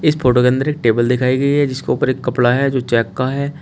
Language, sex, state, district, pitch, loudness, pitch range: Hindi, male, Uttar Pradesh, Shamli, 130 Hz, -16 LUFS, 125-140 Hz